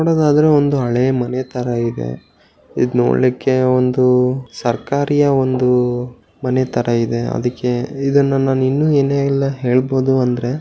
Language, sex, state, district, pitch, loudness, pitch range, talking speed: Kannada, male, Karnataka, Bellary, 130 Hz, -16 LUFS, 125-135 Hz, 125 wpm